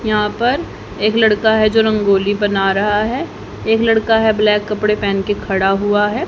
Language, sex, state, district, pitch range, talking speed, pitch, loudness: Hindi, female, Haryana, Jhajjar, 205-220 Hz, 190 wpm, 210 Hz, -15 LUFS